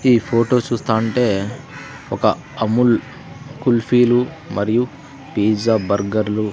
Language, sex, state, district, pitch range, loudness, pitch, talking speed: Telugu, male, Andhra Pradesh, Sri Satya Sai, 110-135 Hz, -18 LUFS, 120 Hz, 100 wpm